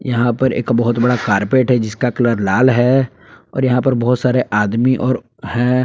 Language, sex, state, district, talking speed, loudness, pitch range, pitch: Hindi, male, Jharkhand, Palamu, 195 wpm, -16 LUFS, 120-130 Hz, 125 Hz